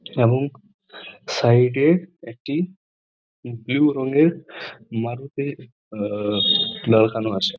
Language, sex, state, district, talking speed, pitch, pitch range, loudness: Bengali, male, West Bengal, Purulia, 85 wpm, 125 Hz, 110-145 Hz, -20 LUFS